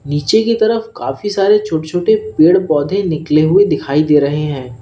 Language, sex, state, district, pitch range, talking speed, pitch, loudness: Hindi, male, Uttar Pradesh, Lalitpur, 150-205 Hz, 185 wpm, 165 Hz, -14 LUFS